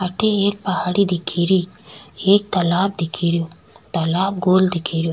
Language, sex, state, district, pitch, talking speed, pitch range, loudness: Rajasthani, female, Rajasthan, Nagaur, 185 Hz, 150 wpm, 170-195 Hz, -19 LUFS